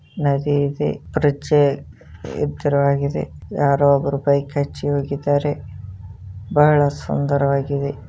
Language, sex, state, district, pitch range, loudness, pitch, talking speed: Kannada, male, Karnataka, Gulbarga, 140-145 Hz, -19 LUFS, 140 Hz, 80 wpm